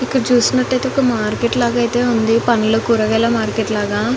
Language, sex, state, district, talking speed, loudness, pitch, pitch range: Telugu, female, Telangana, Nalgonda, 185 wpm, -16 LUFS, 235 Hz, 220-245 Hz